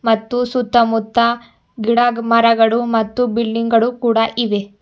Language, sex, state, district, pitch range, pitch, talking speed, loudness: Kannada, female, Karnataka, Bidar, 225-240 Hz, 230 Hz, 110 wpm, -16 LUFS